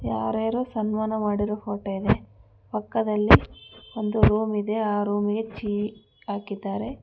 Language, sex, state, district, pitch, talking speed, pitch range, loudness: Kannada, female, Karnataka, Bangalore, 210 Hz, 120 wpm, 200-220 Hz, -25 LUFS